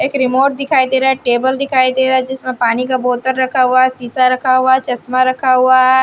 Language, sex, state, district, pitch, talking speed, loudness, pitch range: Hindi, female, Bihar, Patna, 255 Hz, 250 wpm, -13 LUFS, 255-260 Hz